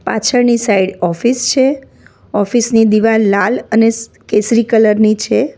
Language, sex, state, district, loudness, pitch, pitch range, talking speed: Gujarati, female, Gujarat, Valsad, -12 LUFS, 225 Hz, 210-240 Hz, 140 wpm